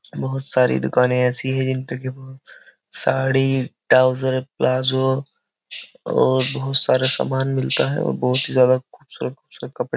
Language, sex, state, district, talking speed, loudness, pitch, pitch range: Hindi, male, Uttar Pradesh, Jyotiba Phule Nagar, 150 wpm, -18 LUFS, 130 Hz, 130-135 Hz